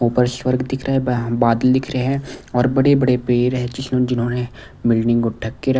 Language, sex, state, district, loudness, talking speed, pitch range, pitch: Hindi, male, Bihar, Patna, -19 LUFS, 195 wpm, 120-130 Hz, 125 Hz